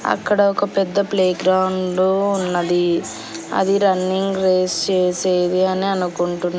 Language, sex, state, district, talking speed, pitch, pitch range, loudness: Telugu, female, Andhra Pradesh, Annamaya, 100 wpm, 185 Hz, 180-195 Hz, -18 LUFS